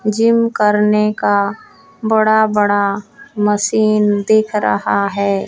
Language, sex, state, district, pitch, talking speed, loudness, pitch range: Hindi, female, Haryana, Jhajjar, 210 Hz, 100 wpm, -14 LUFS, 205-220 Hz